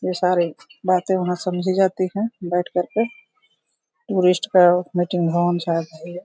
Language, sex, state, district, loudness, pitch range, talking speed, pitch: Hindi, female, Uttar Pradesh, Gorakhpur, -20 LUFS, 175-190 Hz, 155 wpm, 180 Hz